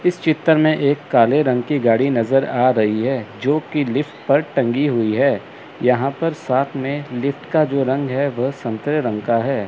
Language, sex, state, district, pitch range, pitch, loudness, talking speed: Hindi, male, Chandigarh, Chandigarh, 125-145 Hz, 135 Hz, -18 LUFS, 205 wpm